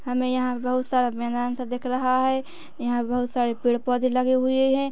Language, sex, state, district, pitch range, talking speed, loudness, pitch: Hindi, female, Chhattisgarh, Rajnandgaon, 245-255 Hz, 195 wpm, -24 LUFS, 250 Hz